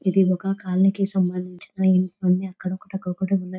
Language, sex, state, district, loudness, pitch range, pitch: Telugu, female, Telangana, Nalgonda, -23 LUFS, 185-195 Hz, 185 Hz